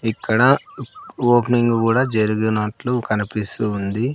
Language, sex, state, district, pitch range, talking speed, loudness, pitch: Telugu, male, Andhra Pradesh, Sri Satya Sai, 105-120 Hz, 85 wpm, -19 LUFS, 115 Hz